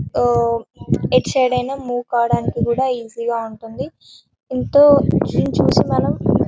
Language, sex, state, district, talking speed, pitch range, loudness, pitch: Telugu, female, Telangana, Karimnagar, 140 wpm, 230-260 Hz, -17 LUFS, 245 Hz